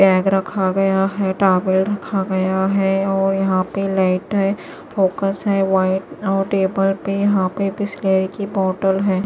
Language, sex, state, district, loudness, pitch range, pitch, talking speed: Hindi, female, Maharashtra, Washim, -18 LUFS, 190-195 Hz, 195 Hz, 160 wpm